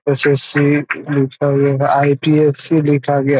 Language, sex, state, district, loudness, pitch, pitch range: Hindi, male, Bihar, East Champaran, -15 LUFS, 145 Hz, 140-145 Hz